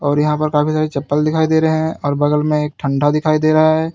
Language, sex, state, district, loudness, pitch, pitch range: Hindi, male, Uttar Pradesh, Lalitpur, -16 LUFS, 150 Hz, 145-155 Hz